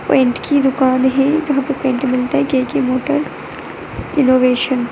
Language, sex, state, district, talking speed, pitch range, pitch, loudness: Hindi, female, Bihar, Begusarai, 160 wpm, 255-280 Hz, 265 Hz, -15 LUFS